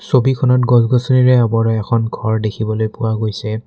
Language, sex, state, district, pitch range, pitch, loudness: Assamese, male, Assam, Kamrup Metropolitan, 110-125 Hz, 115 Hz, -15 LUFS